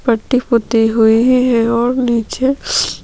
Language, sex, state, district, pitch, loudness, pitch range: Hindi, female, Chhattisgarh, Sukma, 235 Hz, -14 LUFS, 225-250 Hz